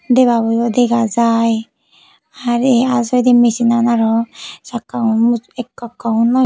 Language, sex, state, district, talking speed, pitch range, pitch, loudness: Chakma, female, Tripura, West Tripura, 140 wpm, 230-245 Hz, 235 Hz, -15 LUFS